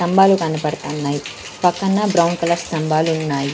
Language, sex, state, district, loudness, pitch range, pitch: Telugu, female, Andhra Pradesh, Sri Satya Sai, -18 LUFS, 150-175 Hz, 160 Hz